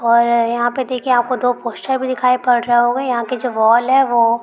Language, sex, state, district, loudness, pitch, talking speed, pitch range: Hindi, female, Rajasthan, Nagaur, -16 LUFS, 245 Hz, 260 wpm, 235-255 Hz